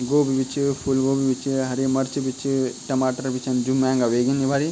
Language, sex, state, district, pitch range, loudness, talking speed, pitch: Garhwali, male, Uttarakhand, Tehri Garhwal, 130-135 Hz, -22 LUFS, 230 wpm, 130 Hz